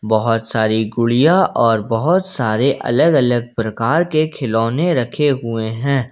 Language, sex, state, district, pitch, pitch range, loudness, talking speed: Hindi, male, Jharkhand, Ranchi, 120 Hz, 115-140 Hz, -16 LUFS, 125 wpm